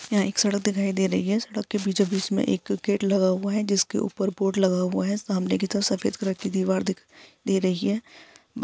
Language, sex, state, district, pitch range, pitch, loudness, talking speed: Hindi, female, Bihar, Jahanabad, 190-205 Hz, 200 Hz, -25 LUFS, 220 wpm